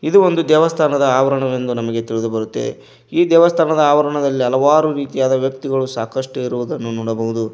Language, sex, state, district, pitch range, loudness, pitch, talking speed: Kannada, male, Karnataka, Koppal, 120-155 Hz, -16 LUFS, 135 Hz, 125 wpm